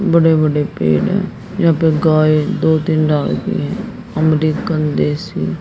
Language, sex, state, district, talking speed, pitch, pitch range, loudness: Hindi, female, Haryana, Jhajjar, 130 wpm, 155 Hz, 150-160 Hz, -15 LUFS